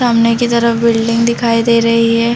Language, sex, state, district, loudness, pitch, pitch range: Hindi, female, Chhattisgarh, Bilaspur, -12 LUFS, 230 Hz, 230-235 Hz